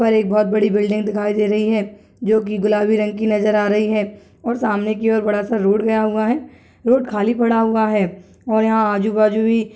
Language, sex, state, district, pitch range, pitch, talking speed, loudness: Hindi, female, Uttarakhand, Tehri Garhwal, 210-220 Hz, 215 Hz, 240 wpm, -18 LUFS